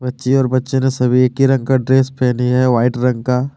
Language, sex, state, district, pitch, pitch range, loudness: Hindi, male, Jharkhand, Deoghar, 130 Hz, 125-130 Hz, -15 LUFS